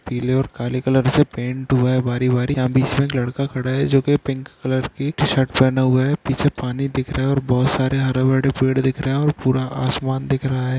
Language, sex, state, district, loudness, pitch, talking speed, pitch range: Hindi, male, Andhra Pradesh, Chittoor, -19 LUFS, 130 Hz, 230 wpm, 130-135 Hz